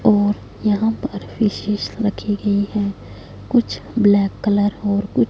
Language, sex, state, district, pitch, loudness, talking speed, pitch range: Hindi, female, Punjab, Fazilka, 205 Hz, -19 LUFS, 135 wpm, 200-215 Hz